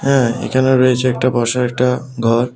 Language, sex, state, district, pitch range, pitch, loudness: Bengali, male, Tripura, West Tripura, 120-130 Hz, 125 Hz, -15 LUFS